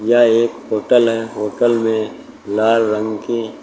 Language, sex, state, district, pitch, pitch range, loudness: Hindi, male, Uttar Pradesh, Lucknow, 115 Hz, 110-115 Hz, -16 LUFS